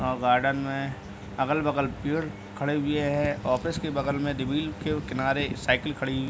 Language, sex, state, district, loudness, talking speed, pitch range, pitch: Hindi, male, Uttar Pradesh, Deoria, -27 LUFS, 160 wpm, 130-145 Hz, 140 Hz